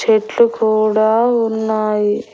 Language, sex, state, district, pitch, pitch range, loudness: Telugu, female, Andhra Pradesh, Annamaya, 220 Hz, 215-225 Hz, -15 LUFS